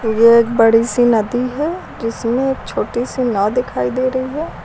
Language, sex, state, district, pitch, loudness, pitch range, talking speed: Hindi, female, Uttar Pradesh, Lucknow, 240 Hz, -16 LUFS, 230-255 Hz, 165 wpm